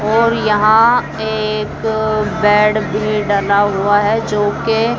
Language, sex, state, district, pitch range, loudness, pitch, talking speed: Hindi, female, Haryana, Charkhi Dadri, 210-220 Hz, -14 LUFS, 215 Hz, 120 wpm